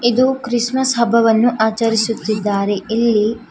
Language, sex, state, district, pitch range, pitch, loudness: Kannada, female, Karnataka, Koppal, 220-240 Hz, 230 Hz, -16 LUFS